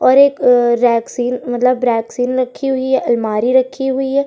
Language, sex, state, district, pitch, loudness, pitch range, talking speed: Hindi, female, Uttar Pradesh, Jyotiba Phule Nagar, 250 Hz, -15 LUFS, 240-265 Hz, 170 wpm